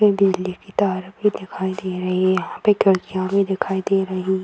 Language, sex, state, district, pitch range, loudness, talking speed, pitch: Hindi, female, Bihar, Jamui, 185-195 Hz, -21 LUFS, 215 wpm, 190 Hz